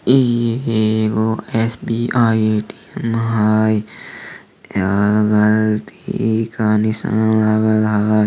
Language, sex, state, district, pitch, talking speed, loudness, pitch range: Maithili, male, Bihar, Samastipur, 110 Hz, 100 wpm, -17 LUFS, 105-115 Hz